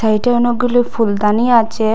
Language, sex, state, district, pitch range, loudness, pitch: Bengali, female, Assam, Hailakandi, 220-240 Hz, -14 LUFS, 225 Hz